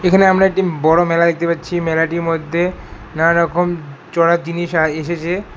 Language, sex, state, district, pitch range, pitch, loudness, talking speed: Bengali, male, West Bengal, Alipurduar, 165-175 Hz, 170 Hz, -16 LUFS, 160 wpm